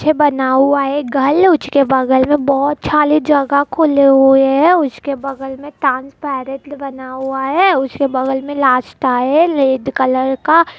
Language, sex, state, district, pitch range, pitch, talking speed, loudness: Hindi, female, Bihar, Kishanganj, 265-290 Hz, 275 Hz, 155 wpm, -14 LUFS